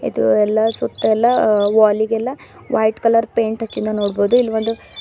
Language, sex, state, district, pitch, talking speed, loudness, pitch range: Kannada, female, Karnataka, Bidar, 220 Hz, 155 wpm, -17 LUFS, 215-230 Hz